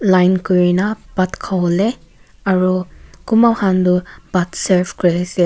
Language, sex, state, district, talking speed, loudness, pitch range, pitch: Nagamese, female, Nagaland, Kohima, 120 wpm, -16 LUFS, 180-190 Hz, 185 Hz